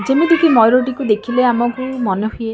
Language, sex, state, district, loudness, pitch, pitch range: Odia, female, Odisha, Khordha, -15 LUFS, 245 Hz, 225-260 Hz